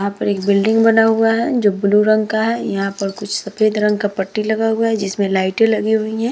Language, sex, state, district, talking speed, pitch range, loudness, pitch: Hindi, female, Bihar, Vaishali, 265 wpm, 200-225 Hz, -16 LUFS, 215 Hz